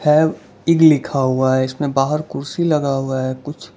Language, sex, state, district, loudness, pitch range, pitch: Hindi, male, Gujarat, Valsad, -17 LUFS, 130-155 Hz, 145 Hz